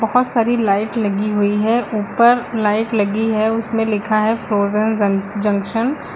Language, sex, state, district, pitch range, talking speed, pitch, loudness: Hindi, female, Uttar Pradesh, Lucknow, 205-230 Hz, 165 wpm, 220 Hz, -17 LUFS